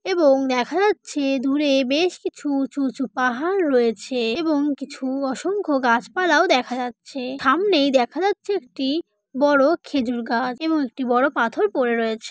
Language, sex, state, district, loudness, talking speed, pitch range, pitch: Bengali, female, West Bengal, Purulia, -21 LUFS, 140 wpm, 250-320 Hz, 275 Hz